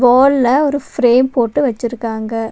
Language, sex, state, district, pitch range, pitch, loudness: Tamil, female, Tamil Nadu, Nilgiris, 235-275 Hz, 245 Hz, -14 LUFS